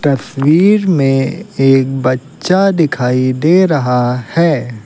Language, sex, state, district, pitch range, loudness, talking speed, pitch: Hindi, male, Uttar Pradesh, Lucknow, 130-165 Hz, -12 LUFS, 100 wpm, 135 Hz